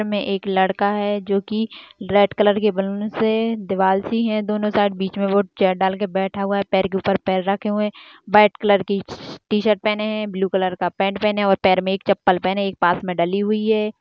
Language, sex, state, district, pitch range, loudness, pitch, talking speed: Hindi, female, Rajasthan, Nagaur, 190-210 Hz, -20 LUFS, 200 Hz, 250 wpm